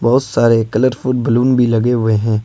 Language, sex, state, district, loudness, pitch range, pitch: Hindi, male, Jharkhand, Ranchi, -14 LUFS, 115-125 Hz, 120 Hz